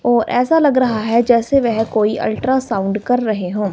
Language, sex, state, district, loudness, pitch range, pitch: Hindi, male, Himachal Pradesh, Shimla, -16 LUFS, 215-255 Hz, 235 Hz